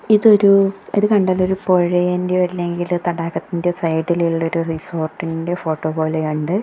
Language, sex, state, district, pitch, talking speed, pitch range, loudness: Malayalam, female, Kerala, Kasaragod, 175 Hz, 120 wpm, 165-185 Hz, -18 LUFS